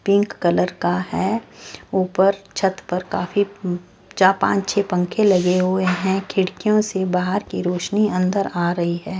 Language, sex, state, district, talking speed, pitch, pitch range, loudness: Hindi, female, Bihar, Katihar, 155 wpm, 190 Hz, 180-200 Hz, -20 LUFS